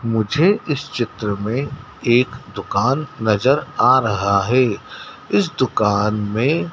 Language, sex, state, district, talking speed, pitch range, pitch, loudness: Hindi, male, Madhya Pradesh, Dhar, 115 wpm, 105-140 Hz, 125 Hz, -18 LUFS